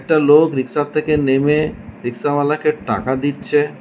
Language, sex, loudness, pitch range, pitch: Bengali, male, -17 LUFS, 135-150 Hz, 145 Hz